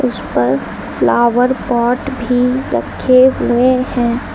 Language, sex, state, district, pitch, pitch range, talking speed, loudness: Hindi, female, Uttar Pradesh, Lucknow, 250 Hz, 240-255 Hz, 110 wpm, -14 LUFS